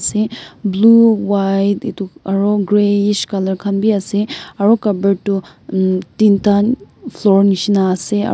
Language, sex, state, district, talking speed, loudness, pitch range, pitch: Nagamese, male, Nagaland, Kohima, 135 wpm, -15 LUFS, 195-210 Hz, 200 Hz